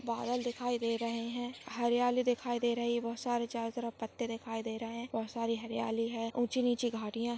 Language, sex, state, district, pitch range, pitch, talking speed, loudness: Hindi, male, Maharashtra, Dhule, 230-240 Hz, 235 Hz, 195 wpm, -35 LUFS